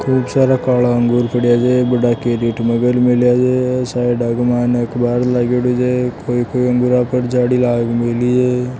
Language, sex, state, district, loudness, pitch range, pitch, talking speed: Marwari, male, Rajasthan, Churu, -15 LUFS, 120-125 Hz, 125 Hz, 165 wpm